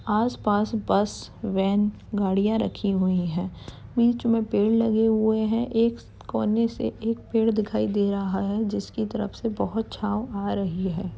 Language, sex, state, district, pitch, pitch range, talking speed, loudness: Hindi, female, Uttar Pradesh, Jalaun, 215 Hz, 200-225 Hz, 165 wpm, -25 LUFS